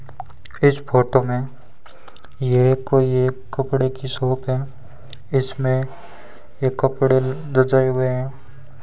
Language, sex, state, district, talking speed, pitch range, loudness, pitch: Hindi, male, Rajasthan, Bikaner, 110 wpm, 130-135 Hz, -20 LUFS, 130 Hz